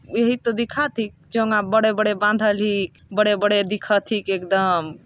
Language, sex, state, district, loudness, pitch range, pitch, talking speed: Chhattisgarhi, female, Chhattisgarh, Balrampur, -20 LUFS, 200-220 Hz, 210 Hz, 165 wpm